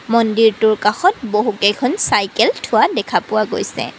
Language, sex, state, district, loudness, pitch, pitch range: Assamese, female, Assam, Kamrup Metropolitan, -16 LUFS, 220 Hz, 210-230 Hz